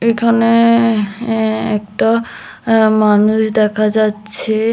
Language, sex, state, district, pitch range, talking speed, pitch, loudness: Bengali, female, Tripura, West Tripura, 215-230 Hz, 90 wpm, 220 Hz, -13 LUFS